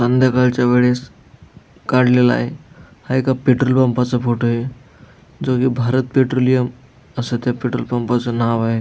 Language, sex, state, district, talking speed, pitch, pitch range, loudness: Marathi, male, Maharashtra, Aurangabad, 130 wpm, 125 Hz, 120-130 Hz, -17 LUFS